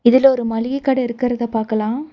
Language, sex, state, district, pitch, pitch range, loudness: Tamil, female, Tamil Nadu, Nilgiris, 245 Hz, 230-265 Hz, -18 LUFS